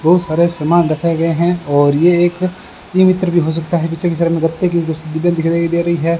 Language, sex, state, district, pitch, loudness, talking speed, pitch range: Hindi, male, Rajasthan, Bikaner, 170 Hz, -14 LUFS, 260 wpm, 165-175 Hz